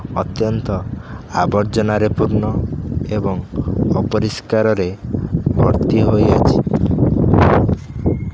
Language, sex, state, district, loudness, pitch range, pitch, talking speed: Odia, male, Odisha, Khordha, -17 LUFS, 95-110 Hz, 105 Hz, 50 wpm